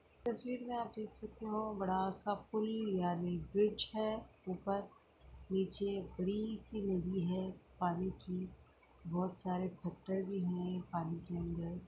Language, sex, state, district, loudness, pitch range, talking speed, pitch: Hindi, female, Chhattisgarh, Bastar, -40 LUFS, 180-215 Hz, 145 wpm, 190 Hz